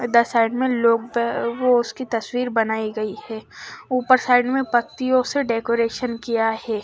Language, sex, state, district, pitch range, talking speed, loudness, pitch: Hindi, female, Haryana, Charkhi Dadri, 230-250 Hz, 160 wpm, -21 LUFS, 235 Hz